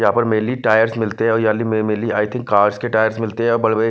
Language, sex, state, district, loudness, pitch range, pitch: Hindi, male, Punjab, Fazilka, -17 LUFS, 110-115 Hz, 110 Hz